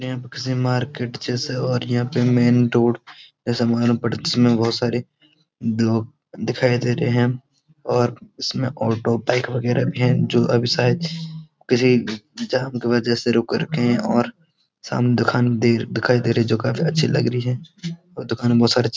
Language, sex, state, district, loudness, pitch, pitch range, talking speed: Hindi, male, Uttarakhand, Uttarkashi, -20 LUFS, 120 Hz, 120-130 Hz, 180 wpm